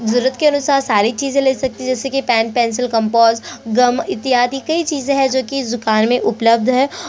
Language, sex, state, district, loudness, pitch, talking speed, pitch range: Hindi, female, Chhattisgarh, Korba, -16 LUFS, 250 Hz, 210 wpm, 230-270 Hz